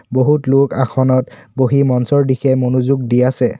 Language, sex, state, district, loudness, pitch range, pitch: Assamese, male, Assam, Kamrup Metropolitan, -14 LUFS, 125-135 Hz, 130 Hz